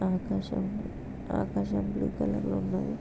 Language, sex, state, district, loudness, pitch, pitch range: Telugu, female, Andhra Pradesh, Krishna, -32 LUFS, 100 Hz, 70-100 Hz